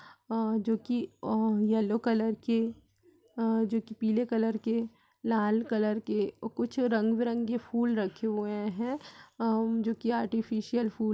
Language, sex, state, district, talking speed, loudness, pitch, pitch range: Hindi, female, Bihar, Gaya, 145 wpm, -30 LUFS, 225 Hz, 220-235 Hz